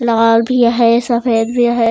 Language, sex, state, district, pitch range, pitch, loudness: Chhattisgarhi, female, Chhattisgarh, Raigarh, 230-240 Hz, 235 Hz, -13 LUFS